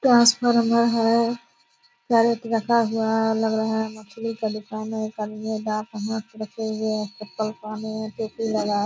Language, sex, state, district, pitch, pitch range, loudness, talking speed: Hindi, female, Bihar, Purnia, 220 Hz, 215-230 Hz, -23 LUFS, 170 wpm